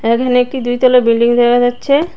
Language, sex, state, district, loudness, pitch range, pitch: Bengali, female, Tripura, West Tripura, -12 LUFS, 240-255 Hz, 245 Hz